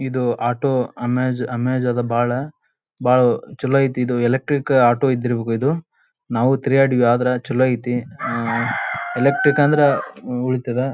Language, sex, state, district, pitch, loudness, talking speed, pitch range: Kannada, male, Karnataka, Bijapur, 125 Hz, -19 LUFS, 120 wpm, 120-135 Hz